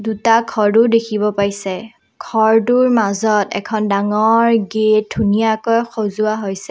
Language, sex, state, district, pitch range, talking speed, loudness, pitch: Assamese, female, Assam, Kamrup Metropolitan, 210-225 Hz, 105 wpm, -15 LUFS, 220 Hz